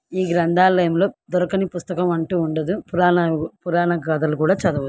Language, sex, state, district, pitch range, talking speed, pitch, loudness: Telugu, female, Andhra Pradesh, Guntur, 165-180 Hz, 110 wpm, 175 Hz, -20 LUFS